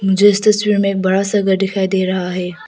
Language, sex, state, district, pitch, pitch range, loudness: Hindi, female, Arunachal Pradesh, Papum Pare, 195 Hz, 185-205 Hz, -15 LUFS